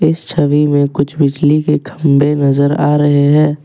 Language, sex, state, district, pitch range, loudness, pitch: Hindi, male, Assam, Kamrup Metropolitan, 145-150 Hz, -12 LUFS, 145 Hz